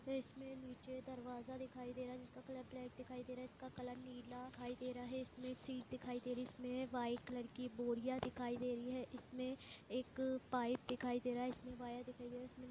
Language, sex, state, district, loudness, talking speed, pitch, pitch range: Hindi, female, Bihar, Vaishali, -47 LUFS, 95 wpm, 250 Hz, 245-255 Hz